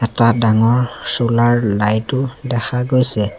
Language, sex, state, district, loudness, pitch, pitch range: Assamese, male, Assam, Sonitpur, -16 LUFS, 120 Hz, 110-125 Hz